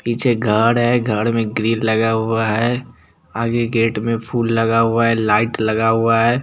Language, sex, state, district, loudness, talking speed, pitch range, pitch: Hindi, male, Chandigarh, Chandigarh, -17 LUFS, 195 wpm, 110-115 Hz, 115 Hz